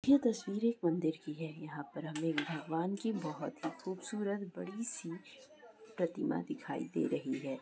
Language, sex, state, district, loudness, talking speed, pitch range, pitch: Hindi, female, Chhattisgarh, Kabirdham, -38 LUFS, 155 wpm, 160-230 Hz, 190 Hz